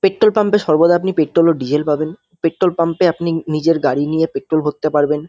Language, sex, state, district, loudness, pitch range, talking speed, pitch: Bengali, male, West Bengal, North 24 Parganas, -16 LUFS, 155-175 Hz, 195 wpm, 165 Hz